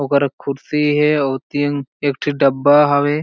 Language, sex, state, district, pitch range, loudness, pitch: Chhattisgarhi, male, Chhattisgarh, Jashpur, 140-145 Hz, -17 LUFS, 145 Hz